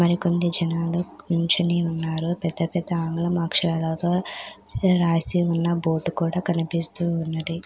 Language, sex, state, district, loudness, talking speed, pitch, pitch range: Telugu, female, Telangana, Hyderabad, -22 LUFS, 110 wpm, 170 Hz, 165-175 Hz